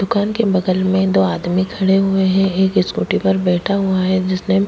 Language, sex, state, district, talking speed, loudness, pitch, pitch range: Hindi, female, Uttarakhand, Tehri Garhwal, 220 wpm, -16 LUFS, 190 Hz, 185-195 Hz